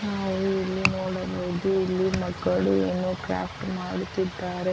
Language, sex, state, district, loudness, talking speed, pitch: Kannada, female, Karnataka, Chamarajanagar, -27 LUFS, 100 wpm, 185 Hz